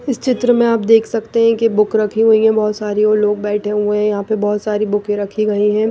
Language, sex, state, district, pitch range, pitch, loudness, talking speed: Hindi, female, Punjab, Pathankot, 210-225 Hz, 215 Hz, -15 LUFS, 275 wpm